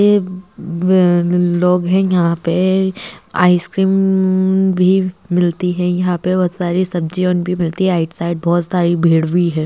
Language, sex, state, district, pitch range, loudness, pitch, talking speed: Hindi, female, Maharashtra, Sindhudurg, 175-185 Hz, -15 LUFS, 180 Hz, 170 wpm